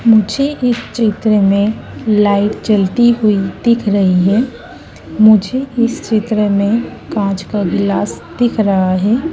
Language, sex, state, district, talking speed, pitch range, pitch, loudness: Hindi, female, Madhya Pradesh, Dhar, 130 wpm, 200-235 Hz, 215 Hz, -14 LUFS